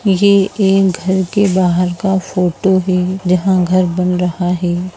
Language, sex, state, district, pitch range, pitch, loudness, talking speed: Hindi, female, Bihar, Jamui, 180-190 Hz, 185 Hz, -14 LUFS, 155 wpm